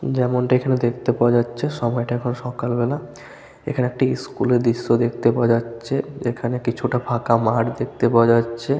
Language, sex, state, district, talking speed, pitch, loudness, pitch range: Bengali, male, West Bengal, Malda, 170 wpm, 120 Hz, -20 LUFS, 115-125 Hz